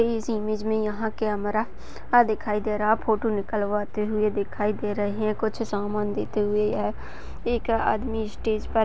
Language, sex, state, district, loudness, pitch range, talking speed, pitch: Hindi, female, Chhattisgarh, Balrampur, -26 LUFS, 210-220 Hz, 165 wpm, 215 Hz